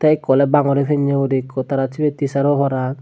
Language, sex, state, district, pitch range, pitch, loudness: Chakma, male, Tripura, Dhalai, 135-145 Hz, 140 Hz, -17 LUFS